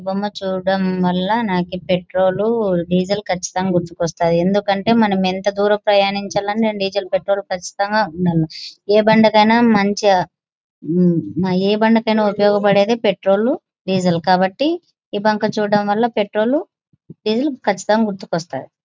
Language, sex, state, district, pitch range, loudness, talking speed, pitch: Telugu, female, Andhra Pradesh, Anantapur, 180-215 Hz, -17 LUFS, 120 wpm, 200 Hz